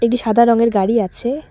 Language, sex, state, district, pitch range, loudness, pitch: Bengali, female, West Bengal, Cooch Behar, 225-235 Hz, -15 LUFS, 230 Hz